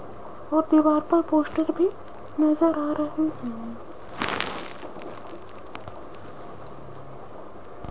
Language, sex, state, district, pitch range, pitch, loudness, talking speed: Hindi, female, Rajasthan, Jaipur, 300-320 Hz, 310 Hz, -24 LUFS, 70 wpm